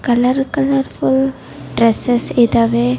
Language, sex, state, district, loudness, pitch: Kannada, female, Karnataka, Bellary, -15 LUFS, 235 Hz